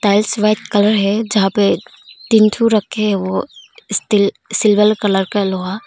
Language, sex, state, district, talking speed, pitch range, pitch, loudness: Hindi, female, Arunachal Pradesh, Longding, 145 wpm, 200-215 Hz, 210 Hz, -15 LUFS